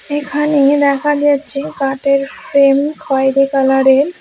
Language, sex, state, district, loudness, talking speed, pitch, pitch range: Bengali, female, West Bengal, Alipurduar, -13 LUFS, 100 wpm, 280 Hz, 275-290 Hz